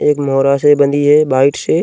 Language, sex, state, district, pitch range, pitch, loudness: Hindi, male, Uttar Pradesh, Jyotiba Phule Nagar, 140-150 Hz, 145 Hz, -12 LUFS